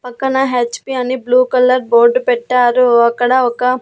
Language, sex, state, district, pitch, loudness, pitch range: Telugu, female, Andhra Pradesh, Annamaya, 250 Hz, -13 LUFS, 245-255 Hz